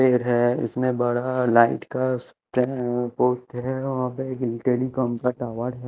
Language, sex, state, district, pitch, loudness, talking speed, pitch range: Hindi, male, Chhattisgarh, Raipur, 125 Hz, -24 LUFS, 145 wpm, 120-130 Hz